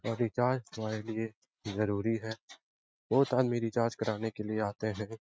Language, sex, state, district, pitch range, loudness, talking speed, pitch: Hindi, male, Bihar, Lakhisarai, 110-115 Hz, -33 LUFS, 160 wpm, 110 Hz